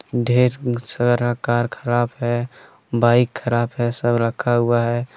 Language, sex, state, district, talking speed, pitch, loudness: Hindi, male, Jharkhand, Deoghar, 140 wpm, 120 Hz, -20 LUFS